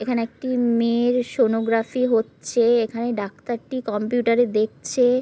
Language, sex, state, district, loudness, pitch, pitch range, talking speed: Bengali, female, West Bengal, Purulia, -22 LUFS, 235 Hz, 225-245 Hz, 115 wpm